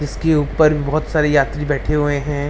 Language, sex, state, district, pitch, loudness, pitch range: Hindi, male, Bihar, Darbhanga, 150 Hz, -17 LUFS, 145-150 Hz